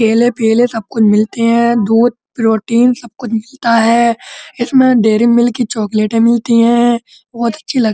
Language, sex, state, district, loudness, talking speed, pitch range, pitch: Hindi, male, Uttar Pradesh, Muzaffarnagar, -12 LUFS, 145 wpm, 225-240 Hz, 235 Hz